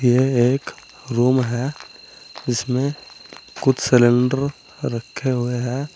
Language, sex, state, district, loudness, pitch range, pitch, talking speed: Hindi, male, Uttar Pradesh, Saharanpur, -20 LUFS, 120-135 Hz, 125 Hz, 100 wpm